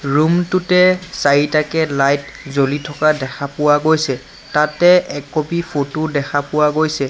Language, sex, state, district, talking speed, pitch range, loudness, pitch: Assamese, male, Assam, Sonitpur, 135 wpm, 140-160 Hz, -16 LUFS, 150 Hz